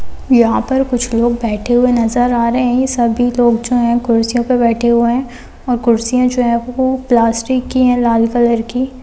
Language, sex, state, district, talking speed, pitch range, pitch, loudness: Hindi, female, West Bengal, Jhargram, 200 wpm, 235-250 Hz, 240 Hz, -14 LUFS